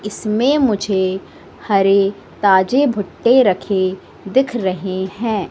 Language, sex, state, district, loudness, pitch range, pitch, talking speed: Hindi, female, Madhya Pradesh, Katni, -16 LUFS, 190-230 Hz, 200 Hz, 100 wpm